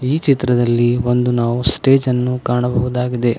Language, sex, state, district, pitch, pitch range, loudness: Kannada, male, Karnataka, Koppal, 125 Hz, 120-125 Hz, -16 LUFS